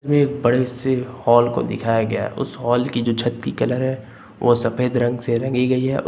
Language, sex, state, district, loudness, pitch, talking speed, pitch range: Hindi, male, Uttar Pradesh, Lucknow, -20 LUFS, 125 Hz, 245 wpm, 120-130 Hz